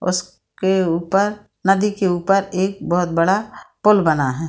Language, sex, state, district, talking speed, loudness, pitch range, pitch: Hindi, female, Bihar, Saran, 160 wpm, -18 LUFS, 175-200 Hz, 190 Hz